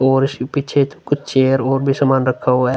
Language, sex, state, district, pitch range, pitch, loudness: Hindi, male, Uttar Pradesh, Hamirpur, 130-140 Hz, 135 Hz, -17 LUFS